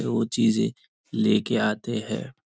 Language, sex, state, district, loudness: Hindi, male, Maharashtra, Nagpur, -25 LUFS